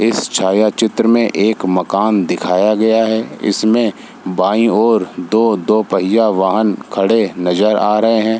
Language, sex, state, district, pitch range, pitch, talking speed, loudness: Hindi, male, Bihar, Samastipur, 95-110 Hz, 110 Hz, 145 wpm, -14 LUFS